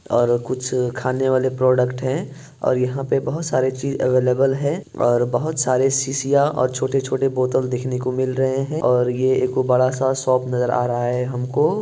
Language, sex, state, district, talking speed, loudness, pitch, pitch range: Hindi, male, Bihar, Purnia, 185 wpm, -20 LUFS, 130 Hz, 125-135 Hz